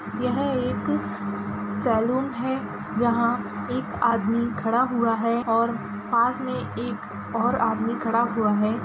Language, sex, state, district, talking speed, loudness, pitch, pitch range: Hindi, female, Bihar, East Champaran, 130 wpm, -25 LUFS, 230 Hz, 215-240 Hz